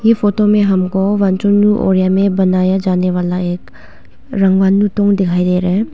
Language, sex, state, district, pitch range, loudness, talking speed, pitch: Hindi, female, Arunachal Pradesh, Longding, 185-205 Hz, -13 LUFS, 150 wpm, 190 Hz